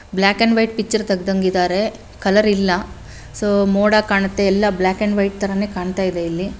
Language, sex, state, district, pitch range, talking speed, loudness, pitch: Kannada, female, Karnataka, Bellary, 185-210 Hz, 165 wpm, -18 LUFS, 195 Hz